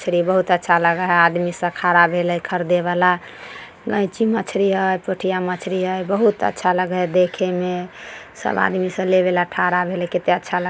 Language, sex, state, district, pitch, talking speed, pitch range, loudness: Maithili, female, Bihar, Samastipur, 180 Hz, 175 wpm, 175-185 Hz, -19 LUFS